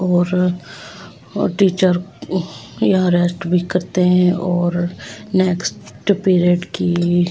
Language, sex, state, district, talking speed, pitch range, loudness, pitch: Hindi, female, Delhi, New Delhi, 100 wpm, 175-185 Hz, -17 LUFS, 180 Hz